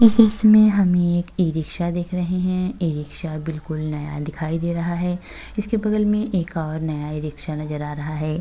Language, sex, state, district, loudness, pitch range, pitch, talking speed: Hindi, female, Uttar Pradesh, Jyotiba Phule Nagar, -22 LUFS, 155-185 Hz, 170 Hz, 195 wpm